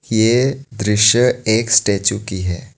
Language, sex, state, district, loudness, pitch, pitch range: Hindi, male, Assam, Kamrup Metropolitan, -15 LUFS, 110 Hz, 100-125 Hz